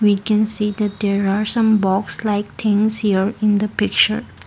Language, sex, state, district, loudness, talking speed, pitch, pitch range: English, female, Assam, Kamrup Metropolitan, -18 LUFS, 190 wpm, 210 Hz, 200-215 Hz